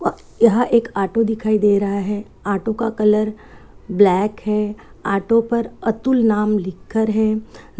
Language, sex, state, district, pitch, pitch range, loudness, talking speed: Hindi, female, Chhattisgarh, Korba, 215 Hz, 205-225 Hz, -19 LUFS, 140 wpm